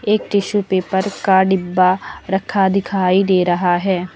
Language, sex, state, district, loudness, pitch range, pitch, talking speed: Hindi, female, Uttar Pradesh, Lucknow, -16 LUFS, 185-195 Hz, 190 Hz, 145 wpm